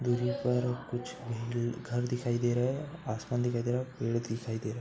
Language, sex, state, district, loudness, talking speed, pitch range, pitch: Hindi, male, Uttar Pradesh, Budaun, -33 LUFS, 210 wpm, 120-125 Hz, 120 Hz